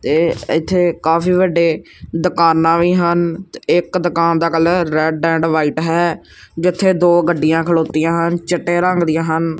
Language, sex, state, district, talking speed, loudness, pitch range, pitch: Punjabi, male, Punjab, Kapurthala, 150 wpm, -15 LUFS, 165-175 Hz, 170 Hz